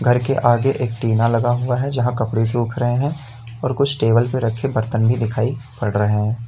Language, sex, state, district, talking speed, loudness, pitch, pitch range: Hindi, male, Uttar Pradesh, Lalitpur, 220 wpm, -19 LUFS, 120 Hz, 115-125 Hz